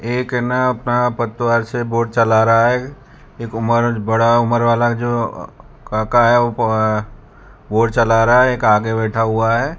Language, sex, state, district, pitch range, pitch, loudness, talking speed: Hindi, male, Gujarat, Valsad, 115-120 Hz, 115 Hz, -16 LUFS, 170 wpm